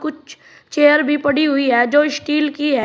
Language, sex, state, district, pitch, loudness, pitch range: Hindi, male, Uttar Pradesh, Shamli, 295 Hz, -15 LUFS, 280-300 Hz